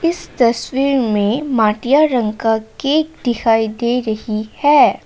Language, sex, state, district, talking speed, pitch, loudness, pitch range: Hindi, female, Assam, Kamrup Metropolitan, 130 wpm, 240 Hz, -16 LUFS, 220-285 Hz